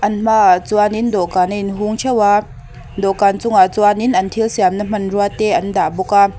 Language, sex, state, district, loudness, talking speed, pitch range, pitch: Mizo, female, Mizoram, Aizawl, -15 LUFS, 190 wpm, 195-215 Hz, 205 Hz